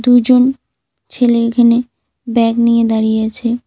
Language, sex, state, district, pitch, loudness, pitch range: Bengali, female, West Bengal, Cooch Behar, 235 Hz, -13 LUFS, 230-245 Hz